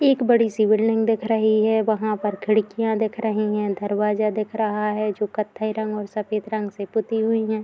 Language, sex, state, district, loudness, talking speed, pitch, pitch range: Hindi, female, Bihar, Madhepura, -22 LUFS, 205 wpm, 215 Hz, 210-220 Hz